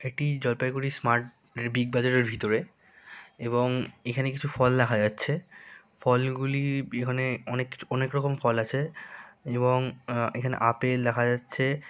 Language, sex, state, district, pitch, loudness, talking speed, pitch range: Bengali, male, West Bengal, Jalpaiguri, 125 Hz, -28 LUFS, 130 wpm, 120-135 Hz